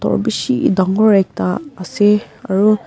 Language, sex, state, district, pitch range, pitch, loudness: Nagamese, female, Nagaland, Kohima, 185-210 Hz, 200 Hz, -15 LUFS